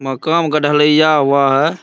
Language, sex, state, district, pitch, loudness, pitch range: Hindi, male, Bihar, Araria, 150 Hz, -13 LUFS, 140-155 Hz